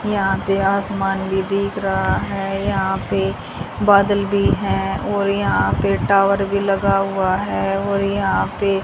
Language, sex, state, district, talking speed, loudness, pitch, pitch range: Hindi, female, Haryana, Jhajjar, 165 wpm, -19 LUFS, 195 Hz, 190-200 Hz